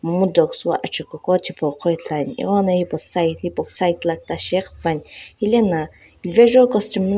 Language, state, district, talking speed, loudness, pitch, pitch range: Sumi, Nagaland, Dimapur, 135 wpm, -18 LUFS, 180 Hz, 165-200 Hz